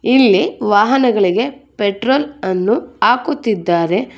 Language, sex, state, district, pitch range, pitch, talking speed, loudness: Kannada, female, Karnataka, Bangalore, 200-270 Hz, 230 Hz, 70 wpm, -15 LUFS